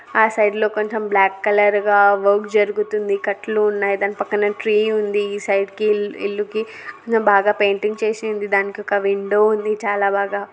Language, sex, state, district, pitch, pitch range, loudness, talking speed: Telugu, female, Andhra Pradesh, Anantapur, 205 Hz, 200-215 Hz, -18 LUFS, 165 wpm